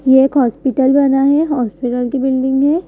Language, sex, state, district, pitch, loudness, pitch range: Hindi, female, Madhya Pradesh, Bhopal, 265 Hz, -14 LUFS, 260-280 Hz